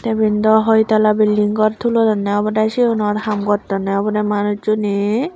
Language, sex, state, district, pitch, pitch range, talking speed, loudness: Chakma, female, Tripura, Unakoti, 215 Hz, 205-220 Hz, 145 wpm, -16 LUFS